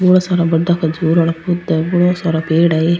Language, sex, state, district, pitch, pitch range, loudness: Rajasthani, female, Rajasthan, Churu, 170 Hz, 165-175 Hz, -15 LUFS